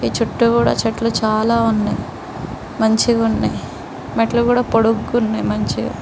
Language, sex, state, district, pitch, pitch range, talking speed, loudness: Telugu, female, Andhra Pradesh, Srikakulam, 225 Hz, 220-235 Hz, 110 wpm, -17 LUFS